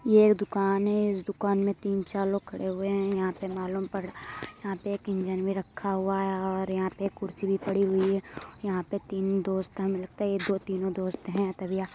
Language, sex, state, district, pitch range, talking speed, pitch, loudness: Hindi, female, Uttar Pradesh, Deoria, 190-200 Hz, 240 wpm, 195 Hz, -29 LUFS